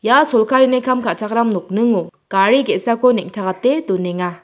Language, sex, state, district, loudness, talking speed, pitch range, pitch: Garo, female, Meghalaya, South Garo Hills, -16 LUFS, 120 wpm, 190-250 Hz, 230 Hz